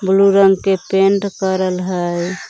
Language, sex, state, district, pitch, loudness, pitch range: Magahi, female, Jharkhand, Palamu, 190 Hz, -15 LUFS, 185-195 Hz